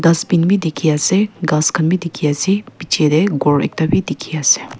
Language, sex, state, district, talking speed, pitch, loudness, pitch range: Nagamese, female, Nagaland, Kohima, 200 wpm, 165 Hz, -16 LUFS, 150-190 Hz